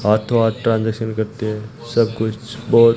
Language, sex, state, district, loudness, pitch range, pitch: Hindi, male, Rajasthan, Bikaner, -19 LUFS, 110-115 Hz, 110 Hz